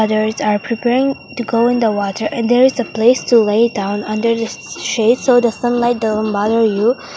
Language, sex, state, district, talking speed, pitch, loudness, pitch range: English, female, Mizoram, Aizawl, 190 wpm, 230 Hz, -15 LUFS, 215-240 Hz